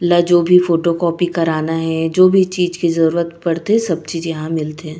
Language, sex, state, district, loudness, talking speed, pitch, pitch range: Chhattisgarhi, female, Chhattisgarh, Raigarh, -16 LUFS, 205 wpm, 170 Hz, 165-175 Hz